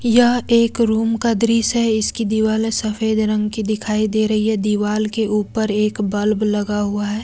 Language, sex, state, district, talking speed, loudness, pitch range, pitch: Hindi, female, Jharkhand, Deoghar, 190 wpm, -18 LUFS, 210-225 Hz, 215 Hz